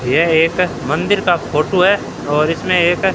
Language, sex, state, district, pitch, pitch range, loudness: Hindi, male, Rajasthan, Bikaner, 175 Hz, 155-185 Hz, -15 LUFS